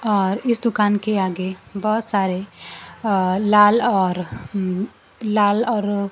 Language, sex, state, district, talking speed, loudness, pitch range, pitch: Hindi, female, Bihar, Kaimur, 125 wpm, -20 LUFS, 190-215 Hz, 205 Hz